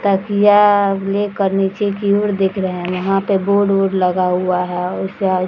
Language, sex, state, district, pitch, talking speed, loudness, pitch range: Hindi, female, Bihar, Jahanabad, 195 Hz, 195 wpm, -16 LUFS, 185-200 Hz